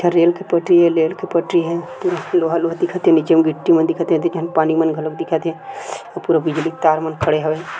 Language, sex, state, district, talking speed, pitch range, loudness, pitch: Chhattisgarhi, male, Chhattisgarh, Sukma, 240 wpm, 160-170 Hz, -17 LUFS, 165 Hz